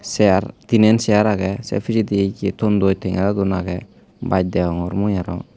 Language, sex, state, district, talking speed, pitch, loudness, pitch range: Chakma, male, Tripura, Unakoti, 160 wpm, 100 Hz, -19 LUFS, 95-105 Hz